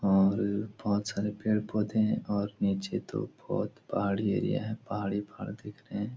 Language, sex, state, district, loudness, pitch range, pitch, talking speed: Hindi, male, Bihar, Supaul, -31 LUFS, 100-110 Hz, 105 Hz, 175 wpm